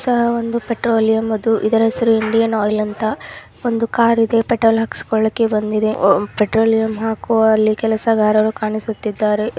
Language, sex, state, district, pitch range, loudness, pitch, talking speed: Kannada, female, Karnataka, Raichur, 215-230 Hz, -16 LUFS, 220 Hz, 120 wpm